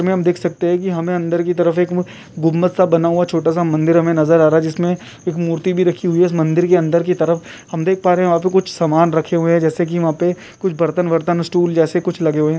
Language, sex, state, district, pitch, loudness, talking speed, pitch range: Hindi, male, Rajasthan, Churu, 170 Hz, -16 LUFS, 285 wpm, 165-180 Hz